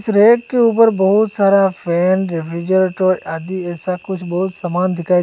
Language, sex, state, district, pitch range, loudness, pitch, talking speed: Hindi, male, Assam, Hailakandi, 175-200 Hz, -16 LUFS, 185 Hz, 160 wpm